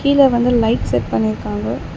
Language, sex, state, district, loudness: Tamil, female, Tamil Nadu, Chennai, -16 LUFS